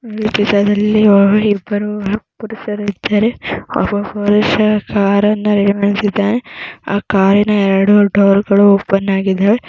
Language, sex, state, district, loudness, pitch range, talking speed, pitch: Kannada, female, Karnataka, Mysore, -13 LUFS, 200-210 Hz, 110 wpm, 205 Hz